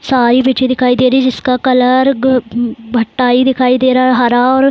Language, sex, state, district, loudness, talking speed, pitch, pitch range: Hindi, female, Bihar, Saran, -11 LUFS, 180 wpm, 255 Hz, 245-260 Hz